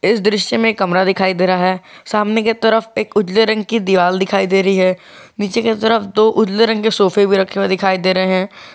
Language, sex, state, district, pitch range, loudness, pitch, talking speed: Hindi, male, Jharkhand, Garhwa, 190-220 Hz, -15 LUFS, 200 Hz, 240 wpm